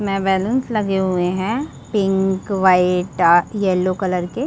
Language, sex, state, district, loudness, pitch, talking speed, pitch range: Hindi, female, Chhattisgarh, Bastar, -18 LUFS, 190 Hz, 160 wpm, 185-205 Hz